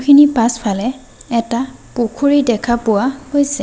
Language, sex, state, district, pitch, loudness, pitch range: Assamese, female, Assam, Sonitpur, 245 Hz, -16 LUFS, 235-280 Hz